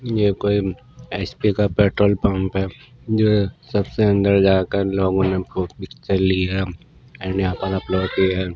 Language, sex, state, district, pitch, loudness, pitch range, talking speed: Hindi, male, Maharashtra, Washim, 95 Hz, -20 LUFS, 95-105 Hz, 160 wpm